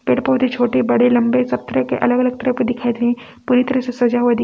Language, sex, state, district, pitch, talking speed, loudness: Hindi, female, Chhattisgarh, Raipur, 240 Hz, 255 wpm, -17 LUFS